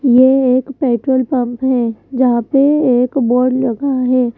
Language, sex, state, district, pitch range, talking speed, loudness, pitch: Hindi, female, Madhya Pradesh, Bhopal, 245-265 Hz, 150 wpm, -14 LUFS, 255 Hz